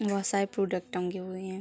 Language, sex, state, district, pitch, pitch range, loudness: Hindi, female, Bihar, Araria, 190 Hz, 185-200 Hz, -31 LUFS